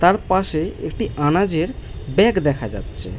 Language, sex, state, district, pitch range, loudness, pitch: Bengali, male, West Bengal, Malda, 110-185 Hz, -20 LUFS, 155 Hz